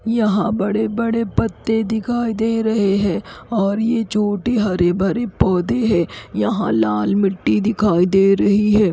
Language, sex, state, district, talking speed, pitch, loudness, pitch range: Hindi, female, Odisha, Khordha, 150 wpm, 210 Hz, -18 LUFS, 195-225 Hz